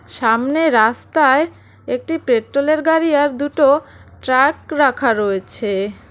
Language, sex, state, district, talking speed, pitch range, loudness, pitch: Bengali, female, West Bengal, Cooch Behar, 110 wpm, 230-300 Hz, -16 LUFS, 275 Hz